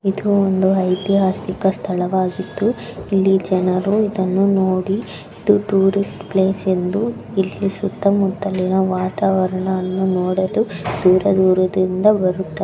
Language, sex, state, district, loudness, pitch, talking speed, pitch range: Kannada, female, Karnataka, Belgaum, -18 LUFS, 190 Hz, 95 wpm, 185-195 Hz